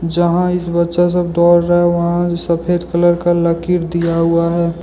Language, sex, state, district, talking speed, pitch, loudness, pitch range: Hindi, male, Jharkhand, Deoghar, 185 wpm, 170 Hz, -14 LUFS, 170-175 Hz